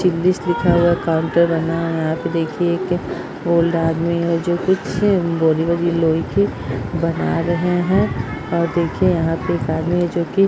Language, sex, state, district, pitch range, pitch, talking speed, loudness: Hindi, female, Bihar, Purnia, 165-175 Hz, 170 Hz, 170 wpm, -18 LUFS